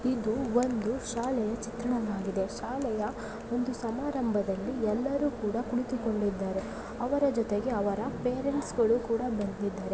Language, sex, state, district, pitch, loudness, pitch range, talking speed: Kannada, female, Karnataka, Belgaum, 230 Hz, -31 LUFS, 210-250 Hz, 105 wpm